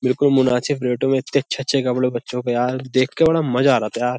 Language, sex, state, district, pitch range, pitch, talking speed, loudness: Hindi, male, Uttar Pradesh, Jyotiba Phule Nagar, 125-140 Hz, 130 Hz, 260 wpm, -19 LUFS